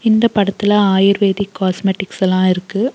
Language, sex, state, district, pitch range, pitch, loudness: Tamil, female, Tamil Nadu, Nilgiris, 190-205 Hz, 195 Hz, -15 LUFS